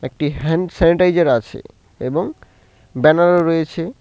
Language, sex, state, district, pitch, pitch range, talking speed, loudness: Bengali, male, West Bengal, Cooch Behar, 160 Hz, 130-170 Hz, 105 wpm, -16 LUFS